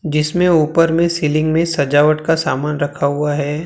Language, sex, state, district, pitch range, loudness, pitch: Hindi, male, Maharashtra, Gondia, 145-165 Hz, -15 LUFS, 155 Hz